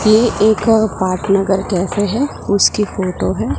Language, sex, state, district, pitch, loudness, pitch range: Hindi, male, Gujarat, Gandhinagar, 205 Hz, -15 LUFS, 195-220 Hz